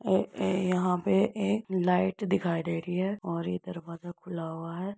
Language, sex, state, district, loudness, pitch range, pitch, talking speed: Hindi, female, Uttar Pradesh, Etah, -30 LUFS, 170-190 Hz, 180 Hz, 195 wpm